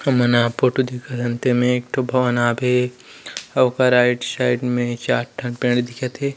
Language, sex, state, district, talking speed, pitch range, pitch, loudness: Chhattisgarhi, male, Chhattisgarh, Rajnandgaon, 190 wpm, 120-125 Hz, 125 Hz, -19 LUFS